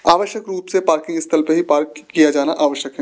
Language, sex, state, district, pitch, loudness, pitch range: Hindi, male, Rajasthan, Jaipur, 160 Hz, -17 LUFS, 150-175 Hz